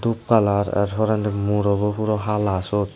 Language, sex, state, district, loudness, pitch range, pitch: Chakma, male, Tripura, Unakoti, -21 LUFS, 100-110 Hz, 105 Hz